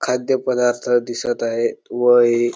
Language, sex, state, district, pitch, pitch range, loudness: Marathi, male, Maharashtra, Dhule, 120 Hz, 120-125 Hz, -18 LUFS